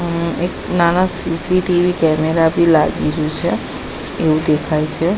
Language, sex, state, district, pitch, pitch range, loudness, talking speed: Gujarati, female, Gujarat, Gandhinagar, 170 Hz, 155-175 Hz, -16 LUFS, 125 wpm